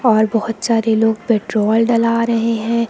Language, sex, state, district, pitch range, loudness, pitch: Hindi, female, Uttar Pradesh, Lucknow, 220-230 Hz, -16 LUFS, 225 Hz